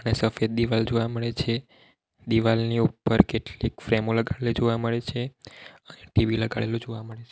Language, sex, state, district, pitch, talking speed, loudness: Gujarati, male, Gujarat, Valsad, 115 Hz, 155 wpm, -25 LUFS